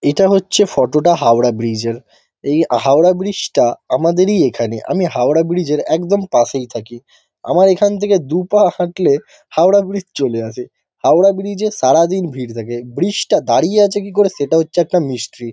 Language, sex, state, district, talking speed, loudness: Bengali, male, West Bengal, Kolkata, 180 wpm, -15 LUFS